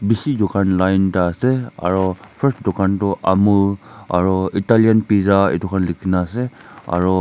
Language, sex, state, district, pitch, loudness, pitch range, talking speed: Nagamese, male, Nagaland, Kohima, 100 Hz, -17 LUFS, 95-105 Hz, 140 wpm